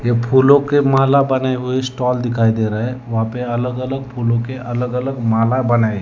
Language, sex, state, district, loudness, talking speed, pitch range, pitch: Hindi, male, Telangana, Hyderabad, -17 LUFS, 220 wpm, 115-130 Hz, 125 Hz